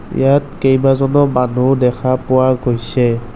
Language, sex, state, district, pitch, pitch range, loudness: Assamese, male, Assam, Kamrup Metropolitan, 130 Hz, 125-135 Hz, -14 LUFS